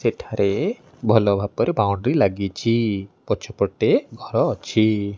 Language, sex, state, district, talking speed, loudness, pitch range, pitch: Odia, male, Odisha, Nuapada, 95 wpm, -21 LUFS, 100-115 Hz, 105 Hz